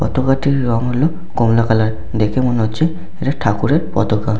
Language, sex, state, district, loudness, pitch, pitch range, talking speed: Bengali, male, West Bengal, Paschim Medinipur, -17 LUFS, 125 Hz, 110-140 Hz, 175 wpm